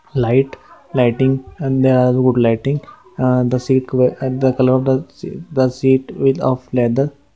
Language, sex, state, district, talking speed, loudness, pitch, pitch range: Hindi, male, West Bengal, Dakshin Dinajpur, 145 wpm, -16 LUFS, 130 Hz, 125-135 Hz